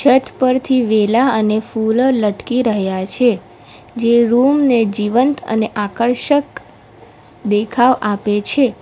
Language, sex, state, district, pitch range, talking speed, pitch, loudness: Gujarati, female, Gujarat, Valsad, 210-255 Hz, 115 wpm, 235 Hz, -15 LUFS